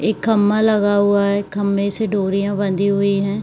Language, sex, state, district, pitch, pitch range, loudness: Hindi, female, Bihar, Purnia, 200 Hz, 200-205 Hz, -16 LUFS